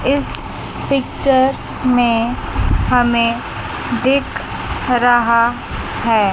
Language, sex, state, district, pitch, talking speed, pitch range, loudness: Hindi, male, Chandigarh, Chandigarh, 245 Hz, 65 wpm, 235-260 Hz, -17 LUFS